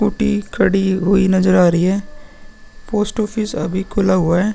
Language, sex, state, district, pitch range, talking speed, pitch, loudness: Hindi, male, Uttar Pradesh, Muzaffarnagar, 185-210 Hz, 170 wpm, 195 Hz, -16 LUFS